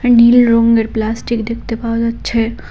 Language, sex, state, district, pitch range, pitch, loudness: Bengali, female, West Bengal, Cooch Behar, 225-235 Hz, 230 Hz, -14 LUFS